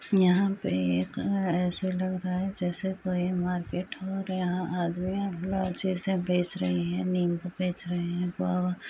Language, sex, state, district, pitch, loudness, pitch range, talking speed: Hindi, female, Uttar Pradesh, Hamirpur, 180 Hz, -29 LUFS, 175-190 Hz, 160 wpm